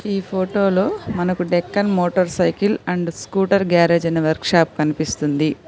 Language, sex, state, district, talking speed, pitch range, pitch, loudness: Telugu, female, Telangana, Hyderabad, 135 wpm, 165-195 Hz, 175 Hz, -19 LUFS